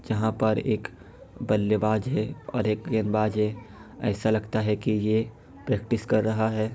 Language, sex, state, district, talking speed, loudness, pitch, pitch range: Hindi, male, Bihar, Kishanganj, 185 wpm, -26 LUFS, 110 Hz, 105-110 Hz